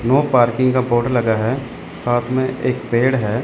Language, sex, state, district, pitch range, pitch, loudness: Hindi, male, Chandigarh, Chandigarh, 120-130 Hz, 120 Hz, -18 LUFS